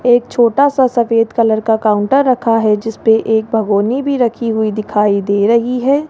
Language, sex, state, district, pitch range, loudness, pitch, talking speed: Hindi, male, Rajasthan, Jaipur, 220-245 Hz, -13 LUFS, 225 Hz, 175 wpm